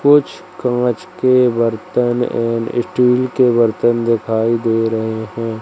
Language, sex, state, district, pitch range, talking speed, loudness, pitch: Hindi, male, Madhya Pradesh, Katni, 115-125 Hz, 130 wpm, -16 LUFS, 120 Hz